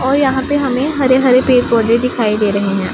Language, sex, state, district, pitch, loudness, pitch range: Hindi, female, Punjab, Pathankot, 255 Hz, -13 LUFS, 225-265 Hz